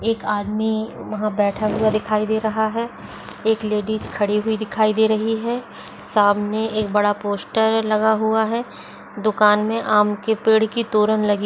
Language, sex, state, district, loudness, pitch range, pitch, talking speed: Hindi, female, Bihar, Madhepura, -20 LUFS, 210-220 Hz, 215 Hz, 175 wpm